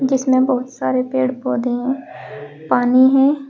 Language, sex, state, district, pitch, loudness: Hindi, female, Uttar Pradesh, Shamli, 255 Hz, -17 LUFS